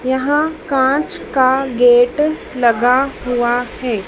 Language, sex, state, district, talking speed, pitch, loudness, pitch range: Hindi, female, Madhya Pradesh, Dhar, 105 wpm, 260 Hz, -15 LUFS, 245-280 Hz